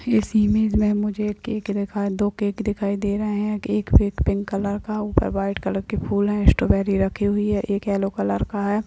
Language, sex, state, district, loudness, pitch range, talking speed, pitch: Hindi, female, Bihar, Purnia, -22 LUFS, 200-210 Hz, 215 wpm, 205 Hz